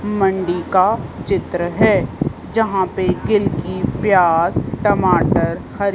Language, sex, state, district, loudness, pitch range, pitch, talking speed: Hindi, female, Madhya Pradesh, Bhopal, -17 LUFS, 180-200 Hz, 190 Hz, 100 wpm